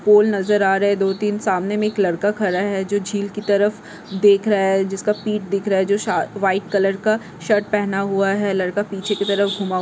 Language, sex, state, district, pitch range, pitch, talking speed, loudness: Hindi, female, Maharashtra, Dhule, 195-210 Hz, 200 Hz, 240 wpm, -19 LUFS